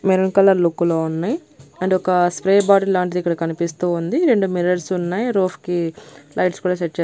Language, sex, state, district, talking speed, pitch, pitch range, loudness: Telugu, female, Andhra Pradesh, Annamaya, 185 wpm, 180 Hz, 170-190 Hz, -19 LUFS